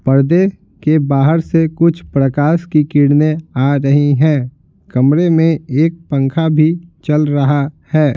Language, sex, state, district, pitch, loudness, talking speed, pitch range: Hindi, male, Bihar, Patna, 150 Hz, -13 LUFS, 140 wpm, 140-160 Hz